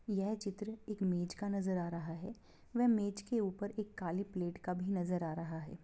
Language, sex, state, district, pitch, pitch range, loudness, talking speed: Hindi, female, Bihar, Begusarai, 195 Hz, 175-210 Hz, -38 LUFS, 215 wpm